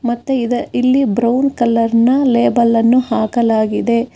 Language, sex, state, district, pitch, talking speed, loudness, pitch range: Kannada, female, Karnataka, Bangalore, 235 Hz, 100 wpm, -14 LUFS, 230-250 Hz